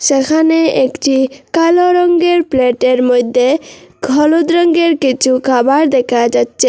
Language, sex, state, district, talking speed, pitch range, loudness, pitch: Bengali, female, Assam, Hailakandi, 105 wpm, 255-330 Hz, -12 LUFS, 280 Hz